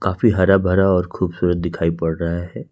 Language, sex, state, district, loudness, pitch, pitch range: Hindi, male, Jharkhand, Ranchi, -18 LUFS, 90 Hz, 85-95 Hz